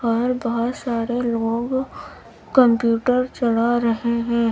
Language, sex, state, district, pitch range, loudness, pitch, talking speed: Hindi, female, Uttar Pradesh, Lalitpur, 230-250 Hz, -20 LUFS, 235 Hz, 105 wpm